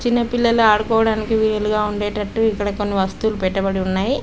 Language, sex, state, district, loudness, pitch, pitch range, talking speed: Telugu, female, Telangana, Karimnagar, -19 LUFS, 215 Hz, 205-225 Hz, 155 wpm